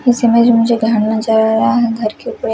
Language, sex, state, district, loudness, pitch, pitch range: Hindi, female, Chhattisgarh, Raipur, -13 LUFS, 230 Hz, 220-240 Hz